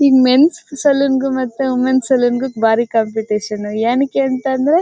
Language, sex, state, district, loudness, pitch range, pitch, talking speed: Kannada, female, Karnataka, Mysore, -15 LUFS, 230-275 Hz, 260 Hz, 175 wpm